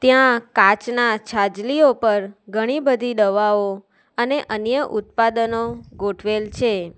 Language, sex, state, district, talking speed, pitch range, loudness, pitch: Gujarati, female, Gujarat, Valsad, 105 wpm, 205-245 Hz, -19 LUFS, 225 Hz